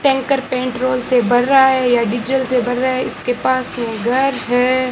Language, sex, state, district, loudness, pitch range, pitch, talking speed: Hindi, male, Rajasthan, Bikaner, -16 LUFS, 245-260 Hz, 255 Hz, 205 wpm